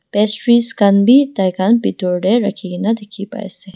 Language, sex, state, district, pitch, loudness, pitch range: Nagamese, female, Nagaland, Dimapur, 205 Hz, -14 LUFS, 190-230 Hz